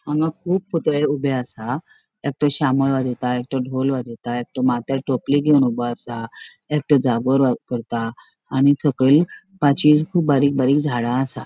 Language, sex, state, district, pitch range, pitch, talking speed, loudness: Konkani, female, Goa, North and South Goa, 125-145 Hz, 135 Hz, 125 wpm, -20 LUFS